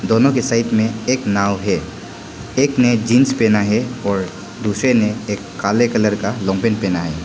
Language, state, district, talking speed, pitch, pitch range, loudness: Hindi, Arunachal Pradesh, Papum Pare, 175 wpm, 105 Hz, 100-120 Hz, -17 LUFS